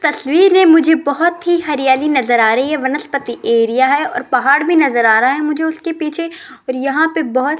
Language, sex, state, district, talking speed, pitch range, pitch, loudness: Hindi, female, Rajasthan, Jaipur, 220 wpm, 260-320 Hz, 290 Hz, -14 LUFS